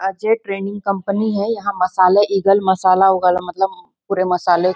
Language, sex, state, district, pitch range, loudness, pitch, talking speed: Hindi, female, Chhattisgarh, Bastar, 185-200 Hz, -17 LUFS, 195 Hz, 165 wpm